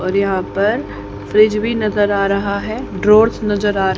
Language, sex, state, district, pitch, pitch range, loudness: Hindi, female, Haryana, Charkhi Dadri, 205 Hz, 195-215 Hz, -16 LUFS